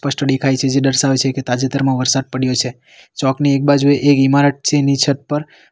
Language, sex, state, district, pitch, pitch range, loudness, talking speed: Gujarati, male, Gujarat, Valsad, 135 Hz, 135-140 Hz, -15 LUFS, 220 wpm